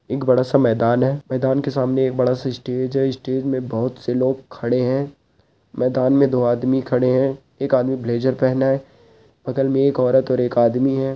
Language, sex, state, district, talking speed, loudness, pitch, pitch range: Hindi, male, Uttarakhand, Uttarkashi, 210 wpm, -19 LUFS, 130 Hz, 125-135 Hz